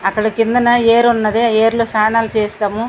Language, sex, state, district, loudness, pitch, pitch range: Telugu, female, Andhra Pradesh, Srikakulam, -14 LUFS, 225 Hz, 215-230 Hz